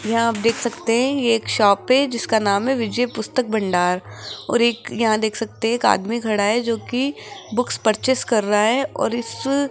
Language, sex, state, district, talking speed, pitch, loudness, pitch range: Hindi, female, Rajasthan, Jaipur, 215 wpm, 230 Hz, -20 LUFS, 220-245 Hz